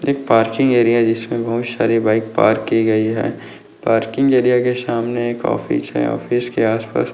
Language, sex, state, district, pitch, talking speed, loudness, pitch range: Hindi, male, Maharashtra, Dhule, 115 Hz, 195 wpm, -17 LUFS, 110-120 Hz